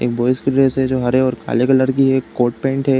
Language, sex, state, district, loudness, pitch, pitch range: Hindi, male, Uttar Pradesh, Varanasi, -16 LUFS, 130 Hz, 125-135 Hz